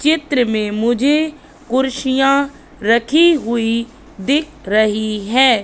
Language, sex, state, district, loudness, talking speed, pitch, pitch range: Hindi, female, Madhya Pradesh, Katni, -16 LUFS, 95 wpm, 260 Hz, 225-285 Hz